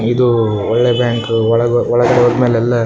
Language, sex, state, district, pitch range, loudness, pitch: Kannada, male, Karnataka, Raichur, 115-120 Hz, -13 LUFS, 120 Hz